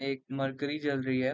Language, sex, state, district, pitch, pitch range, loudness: Hindi, male, Uttar Pradesh, Varanasi, 135 Hz, 130-140 Hz, -32 LUFS